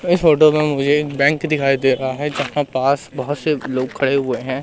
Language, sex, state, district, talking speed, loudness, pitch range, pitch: Hindi, male, Madhya Pradesh, Katni, 220 wpm, -17 LUFS, 135-150 Hz, 140 Hz